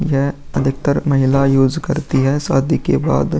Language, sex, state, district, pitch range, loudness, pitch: Hindi, male, Uttar Pradesh, Muzaffarnagar, 135-145 Hz, -16 LUFS, 135 Hz